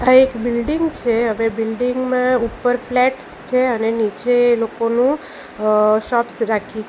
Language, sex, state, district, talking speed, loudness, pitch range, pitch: Gujarati, female, Gujarat, Valsad, 150 wpm, -18 LUFS, 225-255 Hz, 240 Hz